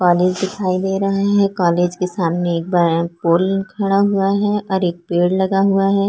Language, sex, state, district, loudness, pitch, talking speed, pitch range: Hindi, female, Chhattisgarh, Korba, -17 LUFS, 190 Hz, 195 wpm, 175-195 Hz